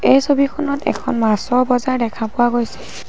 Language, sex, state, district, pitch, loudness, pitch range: Assamese, female, Assam, Sonitpur, 250 Hz, -17 LUFS, 235-275 Hz